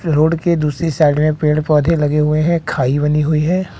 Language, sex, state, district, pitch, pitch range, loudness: Hindi, male, Bihar, West Champaran, 155 Hz, 150-165 Hz, -15 LUFS